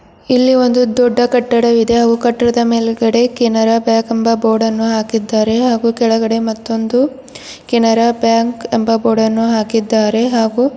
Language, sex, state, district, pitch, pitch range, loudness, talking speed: Kannada, female, Karnataka, Bidar, 230 Hz, 225-240 Hz, -13 LUFS, 135 wpm